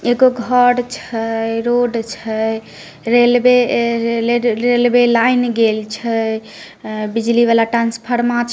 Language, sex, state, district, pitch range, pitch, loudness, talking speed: Maithili, female, Bihar, Samastipur, 225-245 Hz, 235 Hz, -15 LUFS, 105 wpm